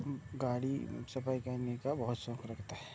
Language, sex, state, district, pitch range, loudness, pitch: Hindi, male, Bihar, Madhepura, 120-130 Hz, -39 LUFS, 125 Hz